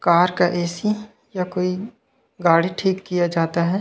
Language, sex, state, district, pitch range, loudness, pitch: Chhattisgarhi, male, Chhattisgarh, Raigarh, 170-190 Hz, -21 LUFS, 180 Hz